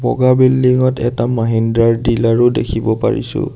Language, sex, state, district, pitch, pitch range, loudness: Assamese, male, Assam, Sonitpur, 120 Hz, 115-130 Hz, -14 LUFS